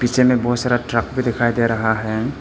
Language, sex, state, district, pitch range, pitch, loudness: Hindi, male, Arunachal Pradesh, Papum Pare, 115-125 Hz, 120 Hz, -18 LUFS